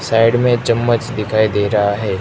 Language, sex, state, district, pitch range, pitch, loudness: Hindi, male, Gujarat, Gandhinagar, 105-120 Hz, 115 Hz, -15 LUFS